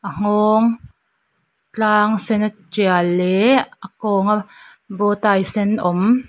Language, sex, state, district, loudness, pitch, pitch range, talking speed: Mizo, female, Mizoram, Aizawl, -17 LUFS, 210 Hz, 200-220 Hz, 115 wpm